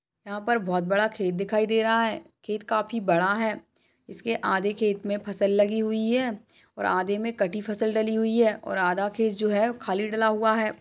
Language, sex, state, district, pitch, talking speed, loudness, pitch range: Hindi, female, Uttar Pradesh, Budaun, 215 Hz, 205 wpm, -25 LUFS, 205-225 Hz